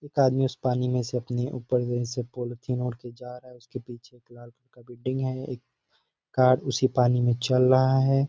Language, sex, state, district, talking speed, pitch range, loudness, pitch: Hindi, male, Bihar, Sitamarhi, 225 wpm, 120-130 Hz, -25 LUFS, 125 Hz